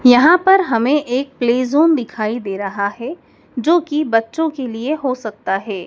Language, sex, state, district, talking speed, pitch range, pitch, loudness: Hindi, male, Madhya Pradesh, Dhar, 185 wpm, 225-305 Hz, 250 Hz, -17 LUFS